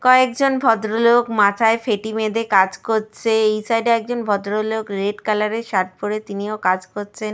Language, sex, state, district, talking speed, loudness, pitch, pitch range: Bengali, female, Jharkhand, Sahebganj, 180 wpm, -19 LUFS, 215 Hz, 205-230 Hz